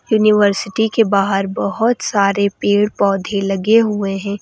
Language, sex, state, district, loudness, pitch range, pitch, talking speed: Hindi, female, Uttar Pradesh, Lucknow, -16 LUFS, 195-220 Hz, 200 Hz, 135 wpm